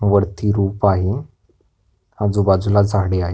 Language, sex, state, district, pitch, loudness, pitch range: Marathi, male, Maharashtra, Pune, 100 Hz, -18 LUFS, 95-105 Hz